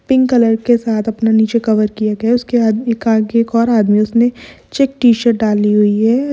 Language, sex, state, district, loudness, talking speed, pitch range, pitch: Hindi, female, Bihar, Kishanganj, -13 LUFS, 225 wpm, 220-240 Hz, 225 Hz